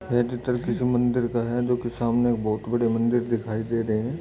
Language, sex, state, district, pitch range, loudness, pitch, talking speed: Hindi, male, Uttar Pradesh, Jyotiba Phule Nagar, 115-120 Hz, -25 LUFS, 120 Hz, 200 wpm